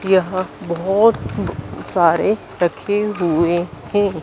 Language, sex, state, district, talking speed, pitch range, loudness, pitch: Hindi, female, Madhya Pradesh, Dhar, 85 wpm, 170-205 Hz, -18 LUFS, 185 Hz